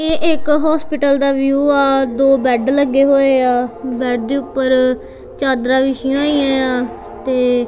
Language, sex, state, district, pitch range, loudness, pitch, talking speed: Punjabi, female, Punjab, Kapurthala, 255-280 Hz, -15 LUFS, 270 Hz, 155 wpm